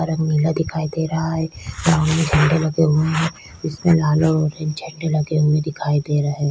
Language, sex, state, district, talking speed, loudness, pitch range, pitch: Hindi, female, Chhattisgarh, Korba, 220 wpm, -19 LUFS, 150-160 Hz, 155 Hz